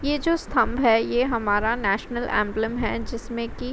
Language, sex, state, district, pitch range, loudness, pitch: Hindi, female, Uttar Pradesh, Varanasi, 225-250 Hz, -23 LUFS, 235 Hz